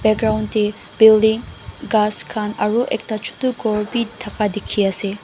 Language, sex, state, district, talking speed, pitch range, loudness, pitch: Nagamese, female, Mizoram, Aizawl, 150 wpm, 210-220 Hz, -19 LUFS, 215 Hz